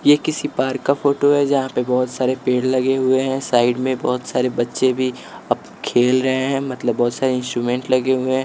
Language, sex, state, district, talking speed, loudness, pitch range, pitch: Hindi, male, Bihar, West Champaran, 220 wpm, -19 LUFS, 125-135 Hz, 130 Hz